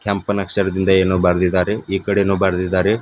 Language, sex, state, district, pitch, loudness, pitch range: Kannada, male, Karnataka, Bidar, 95 Hz, -17 LUFS, 95-100 Hz